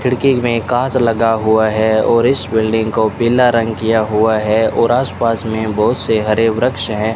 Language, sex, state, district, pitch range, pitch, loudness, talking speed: Hindi, male, Rajasthan, Bikaner, 110-120 Hz, 110 Hz, -14 LUFS, 200 wpm